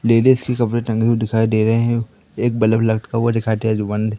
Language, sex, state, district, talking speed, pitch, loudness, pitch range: Hindi, male, Madhya Pradesh, Katni, 245 wpm, 115 Hz, -18 LUFS, 110-115 Hz